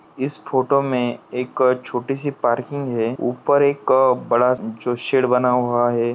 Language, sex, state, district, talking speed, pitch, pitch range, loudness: Hindi, male, Maharashtra, Pune, 145 wpm, 125 Hz, 120-135 Hz, -19 LUFS